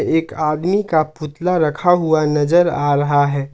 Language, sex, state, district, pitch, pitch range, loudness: Hindi, male, Jharkhand, Ranchi, 155 Hz, 145-175 Hz, -17 LUFS